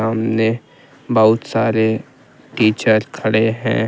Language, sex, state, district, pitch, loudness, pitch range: Hindi, male, Jharkhand, Deoghar, 110 Hz, -17 LUFS, 110-115 Hz